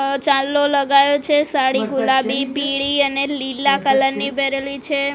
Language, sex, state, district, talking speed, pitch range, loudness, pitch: Gujarati, female, Gujarat, Gandhinagar, 150 wpm, 270-285 Hz, -17 LUFS, 275 Hz